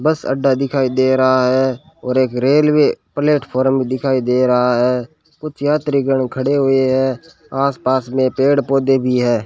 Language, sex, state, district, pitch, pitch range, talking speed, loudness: Hindi, male, Rajasthan, Bikaner, 130 Hz, 130-140 Hz, 165 wpm, -16 LUFS